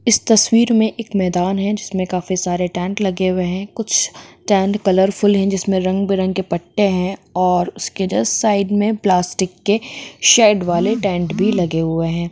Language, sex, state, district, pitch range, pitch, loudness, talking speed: Hindi, female, Jharkhand, Jamtara, 180-210 Hz, 195 Hz, -17 LUFS, 165 wpm